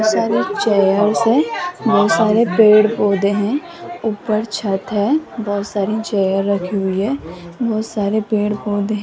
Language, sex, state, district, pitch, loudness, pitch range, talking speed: Hindi, female, Rajasthan, Jaipur, 210 Hz, -17 LUFS, 200-225 Hz, 155 wpm